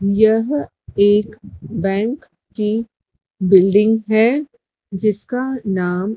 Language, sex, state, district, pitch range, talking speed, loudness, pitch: Hindi, female, Madhya Pradesh, Dhar, 200-230 Hz, 80 wpm, -17 LUFS, 215 Hz